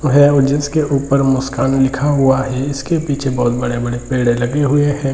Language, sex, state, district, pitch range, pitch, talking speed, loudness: Hindi, male, Bihar, Muzaffarpur, 130-145 Hz, 135 Hz, 185 wpm, -15 LUFS